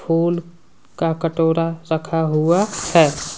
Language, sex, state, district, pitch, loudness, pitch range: Hindi, male, Jharkhand, Deoghar, 165 Hz, -19 LUFS, 160-170 Hz